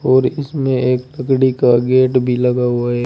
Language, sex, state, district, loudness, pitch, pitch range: Hindi, male, Uttar Pradesh, Saharanpur, -15 LUFS, 130 Hz, 125-130 Hz